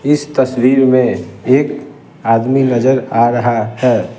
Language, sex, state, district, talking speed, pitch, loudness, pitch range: Hindi, male, Bihar, Patna, 130 wpm, 130 Hz, -13 LUFS, 120-135 Hz